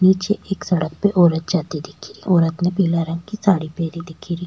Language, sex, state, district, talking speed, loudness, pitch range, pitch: Rajasthani, female, Rajasthan, Churu, 230 wpm, -20 LUFS, 165-185 Hz, 175 Hz